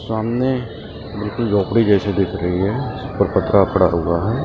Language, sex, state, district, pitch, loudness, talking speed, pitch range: Hindi, male, Maharashtra, Mumbai Suburban, 100 Hz, -18 LUFS, 190 wpm, 95-115 Hz